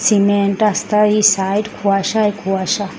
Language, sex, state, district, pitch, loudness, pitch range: Bengali, female, Assam, Hailakandi, 205 Hz, -15 LUFS, 195-210 Hz